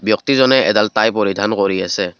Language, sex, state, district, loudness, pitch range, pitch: Assamese, male, Assam, Kamrup Metropolitan, -15 LUFS, 100-110 Hz, 105 Hz